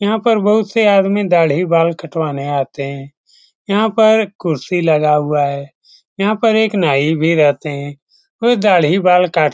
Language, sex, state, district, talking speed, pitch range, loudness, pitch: Hindi, male, Bihar, Saran, 155 wpm, 150-210 Hz, -14 LUFS, 170 Hz